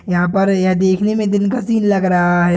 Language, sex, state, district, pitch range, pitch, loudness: Hindi, male, Bihar, Purnia, 180-205 Hz, 195 Hz, -15 LUFS